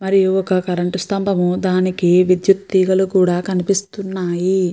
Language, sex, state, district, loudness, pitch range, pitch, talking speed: Telugu, female, Andhra Pradesh, Chittoor, -17 LUFS, 180-190 Hz, 185 Hz, 115 wpm